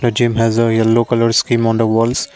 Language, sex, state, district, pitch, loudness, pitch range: English, male, Assam, Kamrup Metropolitan, 115 Hz, -14 LUFS, 115-120 Hz